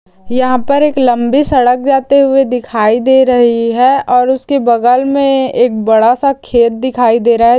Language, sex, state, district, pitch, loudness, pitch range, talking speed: Hindi, female, Chhattisgarh, Korba, 250 Hz, -11 LUFS, 235-270 Hz, 180 wpm